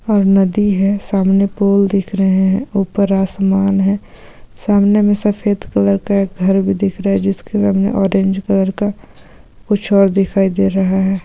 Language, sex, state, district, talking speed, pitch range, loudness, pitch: Hindi, female, Goa, North and South Goa, 175 wpm, 195-200 Hz, -15 LUFS, 195 Hz